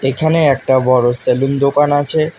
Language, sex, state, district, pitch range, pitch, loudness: Bengali, male, West Bengal, Alipurduar, 130-145 Hz, 140 Hz, -13 LUFS